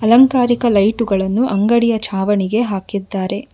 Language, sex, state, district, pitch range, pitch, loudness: Kannada, female, Karnataka, Bangalore, 200-235 Hz, 215 Hz, -15 LUFS